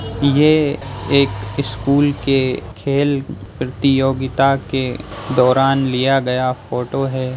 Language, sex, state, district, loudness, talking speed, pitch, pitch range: Hindi, male, Chhattisgarh, Sukma, -17 LUFS, 100 wpm, 135 Hz, 125-140 Hz